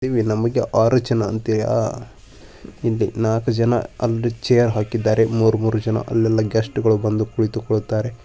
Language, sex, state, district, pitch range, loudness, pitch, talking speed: Kannada, male, Karnataka, Bijapur, 110-115 Hz, -19 LUFS, 110 Hz, 125 wpm